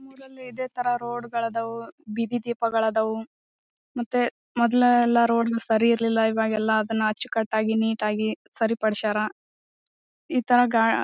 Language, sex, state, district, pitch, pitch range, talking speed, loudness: Kannada, female, Karnataka, Bijapur, 230 Hz, 220-240 Hz, 125 wpm, -24 LUFS